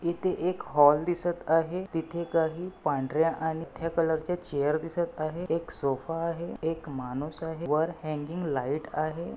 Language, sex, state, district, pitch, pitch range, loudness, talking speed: Marathi, male, Maharashtra, Nagpur, 165 Hz, 155-170 Hz, -29 LUFS, 155 wpm